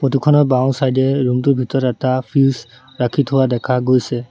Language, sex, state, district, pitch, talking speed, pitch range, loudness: Assamese, male, Assam, Sonitpur, 130 Hz, 195 wpm, 125-135 Hz, -16 LUFS